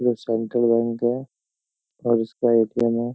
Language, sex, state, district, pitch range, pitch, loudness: Hindi, male, Uttar Pradesh, Jyotiba Phule Nagar, 115-120 Hz, 120 Hz, -22 LUFS